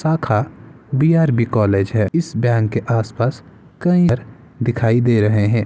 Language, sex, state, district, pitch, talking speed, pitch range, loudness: Hindi, male, Bihar, Samastipur, 120 Hz, 140 wpm, 110-140 Hz, -17 LUFS